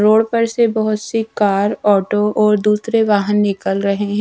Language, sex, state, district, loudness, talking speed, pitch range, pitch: Hindi, female, Punjab, Fazilka, -16 LUFS, 185 wpm, 205-220 Hz, 210 Hz